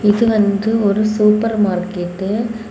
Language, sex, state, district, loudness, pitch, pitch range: Tamil, female, Tamil Nadu, Kanyakumari, -16 LUFS, 210 Hz, 200-220 Hz